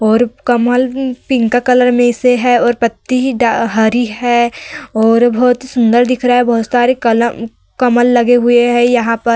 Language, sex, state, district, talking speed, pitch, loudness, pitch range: Hindi, female, Uttar Pradesh, Varanasi, 165 wpm, 245 Hz, -12 LUFS, 235-250 Hz